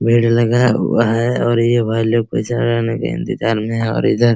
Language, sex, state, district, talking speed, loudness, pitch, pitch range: Hindi, male, Bihar, Araria, 220 wpm, -16 LUFS, 115 Hz, 115-120 Hz